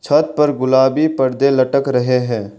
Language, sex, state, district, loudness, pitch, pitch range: Hindi, male, Arunachal Pradesh, Lower Dibang Valley, -15 LUFS, 130 Hz, 125-145 Hz